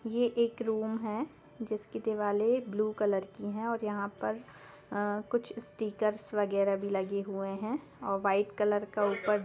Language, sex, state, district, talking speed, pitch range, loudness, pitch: Hindi, female, Jharkhand, Jamtara, 160 wpm, 200-220 Hz, -33 LUFS, 210 Hz